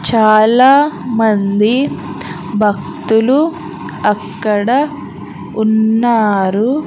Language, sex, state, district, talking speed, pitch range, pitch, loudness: Telugu, female, Andhra Pradesh, Sri Satya Sai, 45 wpm, 210-255 Hz, 220 Hz, -13 LUFS